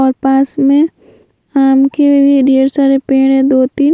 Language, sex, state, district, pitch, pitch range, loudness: Hindi, female, Bihar, Vaishali, 270 Hz, 270-280 Hz, -11 LUFS